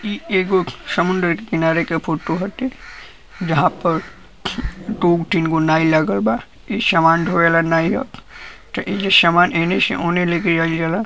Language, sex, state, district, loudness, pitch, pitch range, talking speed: Bhojpuri, male, Uttar Pradesh, Gorakhpur, -17 LUFS, 170 Hz, 165-185 Hz, 175 wpm